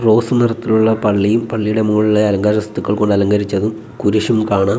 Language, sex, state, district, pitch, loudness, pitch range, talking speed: Malayalam, male, Kerala, Kollam, 105 Hz, -15 LUFS, 105-110 Hz, 140 wpm